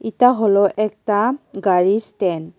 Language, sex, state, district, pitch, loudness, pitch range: Bengali, female, Tripura, West Tripura, 210 Hz, -18 LUFS, 195-225 Hz